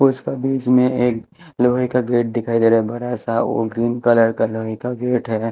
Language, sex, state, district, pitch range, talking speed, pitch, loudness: Hindi, male, Chhattisgarh, Raipur, 115-125 Hz, 230 wpm, 120 Hz, -18 LUFS